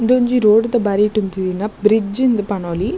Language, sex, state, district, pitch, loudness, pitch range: Tulu, female, Karnataka, Dakshina Kannada, 210 Hz, -16 LUFS, 200-230 Hz